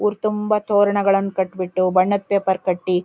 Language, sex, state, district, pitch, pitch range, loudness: Kannada, female, Karnataka, Shimoga, 195 Hz, 185-205 Hz, -19 LUFS